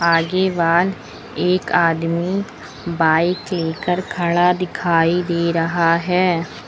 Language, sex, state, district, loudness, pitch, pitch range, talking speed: Hindi, female, Uttar Pradesh, Lucknow, -18 LUFS, 170 Hz, 165-180 Hz, 100 wpm